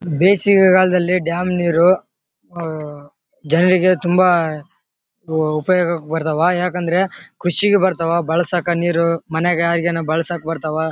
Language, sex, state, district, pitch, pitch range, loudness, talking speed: Kannada, male, Karnataka, Bellary, 170 Hz, 165-180 Hz, -16 LUFS, 105 wpm